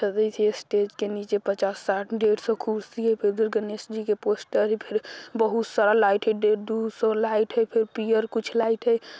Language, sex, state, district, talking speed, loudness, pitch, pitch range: Bajjika, female, Bihar, Vaishali, 195 wpm, -25 LUFS, 220 Hz, 210-225 Hz